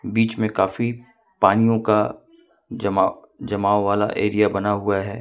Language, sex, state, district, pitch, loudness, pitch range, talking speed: Hindi, male, Jharkhand, Ranchi, 105 Hz, -21 LUFS, 100-115 Hz, 140 wpm